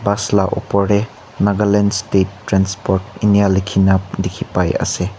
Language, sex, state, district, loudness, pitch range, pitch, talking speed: Nagamese, male, Nagaland, Kohima, -16 LUFS, 95-100 Hz, 100 Hz, 150 wpm